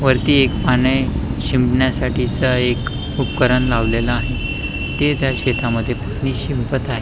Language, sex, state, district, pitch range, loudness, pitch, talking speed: Marathi, male, Maharashtra, Pune, 120-130 Hz, -18 LUFS, 125 Hz, 135 wpm